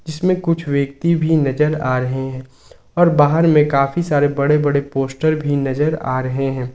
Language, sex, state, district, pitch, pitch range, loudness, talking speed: Hindi, male, Jharkhand, Ranchi, 145 Hz, 135-160 Hz, -17 LUFS, 185 wpm